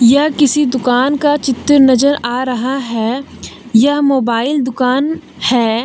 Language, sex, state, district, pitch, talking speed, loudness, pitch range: Hindi, female, Jharkhand, Deoghar, 260 Hz, 135 wpm, -13 LUFS, 245-285 Hz